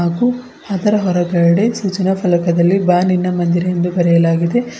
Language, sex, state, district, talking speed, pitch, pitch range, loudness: Kannada, female, Karnataka, Bidar, 115 wpm, 180 Hz, 175-195 Hz, -15 LUFS